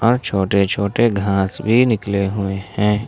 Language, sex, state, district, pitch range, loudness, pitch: Hindi, male, Jharkhand, Ranchi, 100-110 Hz, -18 LUFS, 100 Hz